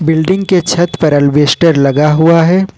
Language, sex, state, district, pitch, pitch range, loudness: Hindi, male, Jharkhand, Ranchi, 160 Hz, 150-175 Hz, -10 LUFS